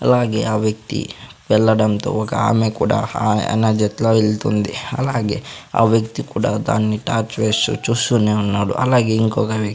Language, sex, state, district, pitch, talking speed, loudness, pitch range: Telugu, male, Andhra Pradesh, Sri Satya Sai, 110 Hz, 135 wpm, -18 LUFS, 105-115 Hz